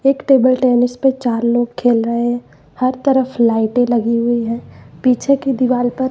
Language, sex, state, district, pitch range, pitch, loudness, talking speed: Hindi, female, Madhya Pradesh, Umaria, 235-260 Hz, 245 Hz, -15 LUFS, 185 wpm